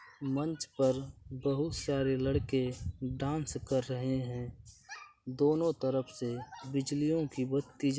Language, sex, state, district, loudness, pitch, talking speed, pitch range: Hindi, male, Bihar, Darbhanga, -34 LUFS, 135 Hz, 130 wpm, 130-145 Hz